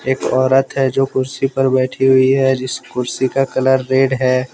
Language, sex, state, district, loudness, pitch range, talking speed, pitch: Hindi, male, Jharkhand, Deoghar, -15 LUFS, 130-135 Hz, 200 wpm, 130 Hz